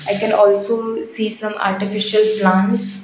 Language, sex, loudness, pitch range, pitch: English, female, -16 LUFS, 200-215 Hz, 210 Hz